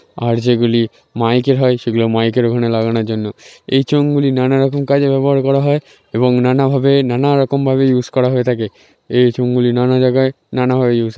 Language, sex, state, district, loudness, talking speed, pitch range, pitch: Bengali, male, West Bengal, North 24 Parganas, -14 LUFS, 175 wpm, 120-135 Hz, 125 Hz